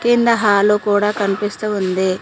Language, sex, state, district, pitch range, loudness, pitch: Telugu, female, Telangana, Mahabubabad, 200-215 Hz, -16 LUFS, 205 Hz